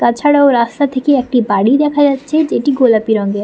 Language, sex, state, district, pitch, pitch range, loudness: Bengali, female, West Bengal, Paschim Medinipur, 265 Hz, 235-285 Hz, -12 LUFS